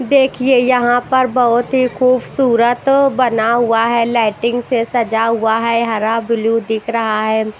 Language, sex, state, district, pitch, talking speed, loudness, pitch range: Hindi, female, Haryana, Rohtak, 235 Hz, 150 wpm, -14 LUFS, 225-255 Hz